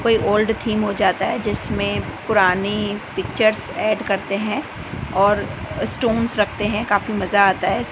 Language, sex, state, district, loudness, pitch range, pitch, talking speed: Hindi, female, Gujarat, Gandhinagar, -20 LUFS, 195-215 Hz, 210 Hz, 150 wpm